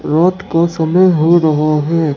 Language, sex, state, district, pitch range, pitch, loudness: Hindi, male, Bihar, Katihar, 155-175 Hz, 165 Hz, -12 LUFS